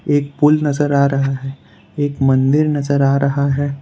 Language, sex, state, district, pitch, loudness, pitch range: Hindi, male, Gujarat, Valsad, 140 Hz, -16 LUFS, 140-145 Hz